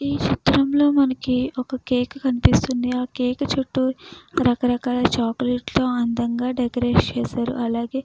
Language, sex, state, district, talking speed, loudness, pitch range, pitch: Telugu, female, Andhra Pradesh, Krishna, 110 wpm, -21 LUFS, 245-260 Hz, 250 Hz